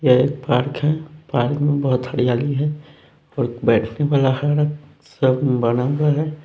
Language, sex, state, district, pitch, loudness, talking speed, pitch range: Hindi, male, Haryana, Rohtak, 140 Hz, -19 LUFS, 160 wpm, 125-150 Hz